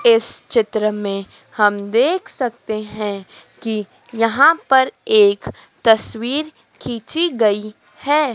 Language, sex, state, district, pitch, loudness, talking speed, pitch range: Hindi, female, Madhya Pradesh, Dhar, 230 Hz, -18 LUFS, 110 wpm, 215-305 Hz